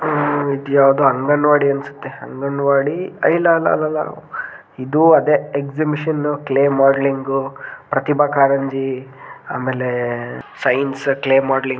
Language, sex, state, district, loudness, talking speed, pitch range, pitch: Kannada, male, Karnataka, Gulbarga, -17 LUFS, 105 wpm, 135-145 Hz, 140 Hz